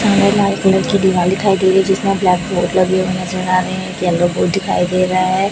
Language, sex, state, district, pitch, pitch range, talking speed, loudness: Hindi, female, Chhattisgarh, Raipur, 185 Hz, 185-195 Hz, 260 wpm, -15 LUFS